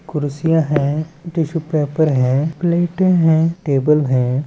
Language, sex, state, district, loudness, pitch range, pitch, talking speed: Chhattisgarhi, male, Chhattisgarh, Balrampur, -17 LUFS, 145-165 Hz, 155 Hz, 120 wpm